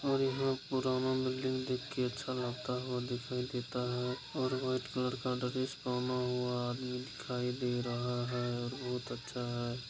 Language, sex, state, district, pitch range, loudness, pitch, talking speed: Hindi, male, Bihar, Araria, 125-130 Hz, -36 LUFS, 125 Hz, 175 wpm